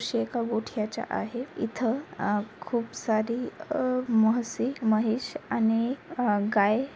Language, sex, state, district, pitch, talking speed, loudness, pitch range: Marathi, female, Maharashtra, Aurangabad, 230 Hz, 105 wpm, -28 LUFS, 220-245 Hz